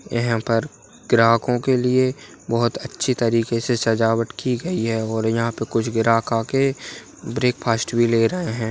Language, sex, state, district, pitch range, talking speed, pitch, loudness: Hindi, male, Bihar, Darbhanga, 115-125 Hz, 170 wpm, 115 Hz, -20 LUFS